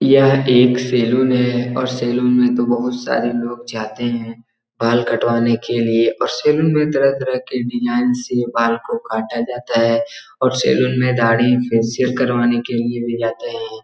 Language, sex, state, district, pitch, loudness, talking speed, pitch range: Hindi, male, Bihar, Jahanabad, 120 Hz, -17 LUFS, 175 wpm, 115-130 Hz